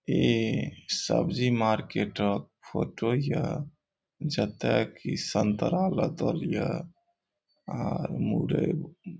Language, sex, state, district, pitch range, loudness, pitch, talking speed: Maithili, male, Bihar, Saharsa, 120-175 Hz, -29 LUFS, 165 Hz, 90 wpm